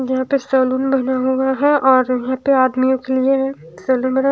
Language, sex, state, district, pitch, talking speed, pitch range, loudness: Hindi, female, Bihar, Katihar, 260 Hz, 195 wpm, 260-270 Hz, -17 LUFS